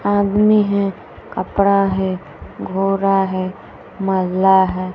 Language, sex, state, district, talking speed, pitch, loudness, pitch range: Hindi, female, Bihar, West Champaran, 95 wpm, 195 Hz, -17 LUFS, 190-200 Hz